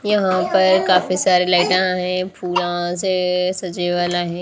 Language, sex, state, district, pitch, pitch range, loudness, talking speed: Hindi, female, Haryana, Rohtak, 185 Hz, 180-185 Hz, -18 LUFS, 150 wpm